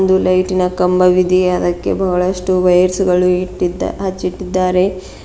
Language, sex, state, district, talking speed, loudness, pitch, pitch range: Kannada, female, Karnataka, Bidar, 115 wpm, -15 LUFS, 185 Hz, 180-185 Hz